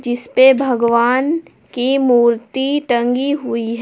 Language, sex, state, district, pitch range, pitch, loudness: Hindi, female, Jharkhand, Palamu, 235-265 Hz, 250 Hz, -15 LUFS